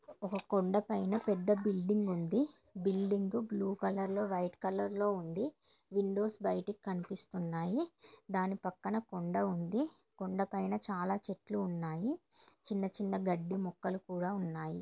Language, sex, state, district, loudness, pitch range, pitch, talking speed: Telugu, female, Telangana, Karimnagar, -37 LUFS, 185-210 Hz, 195 Hz, 125 wpm